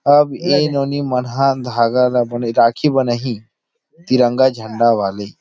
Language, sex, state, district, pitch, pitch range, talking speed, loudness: Chhattisgarhi, male, Chhattisgarh, Rajnandgaon, 125 Hz, 115-140 Hz, 165 wpm, -16 LUFS